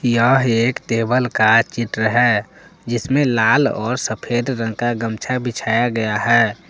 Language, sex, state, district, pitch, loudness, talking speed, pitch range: Hindi, male, Jharkhand, Palamu, 120 Hz, -17 LUFS, 145 wpm, 115-125 Hz